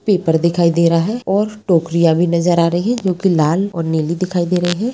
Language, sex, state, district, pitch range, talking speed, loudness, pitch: Hindi, female, Bihar, Madhepura, 170-190 Hz, 255 wpm, -16 LUFS, 175 Hz